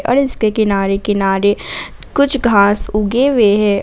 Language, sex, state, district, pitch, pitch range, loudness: Hindi, female, Jharkhand, Garhwa, 210 Hz, 200-245 Hz, -14 LUFS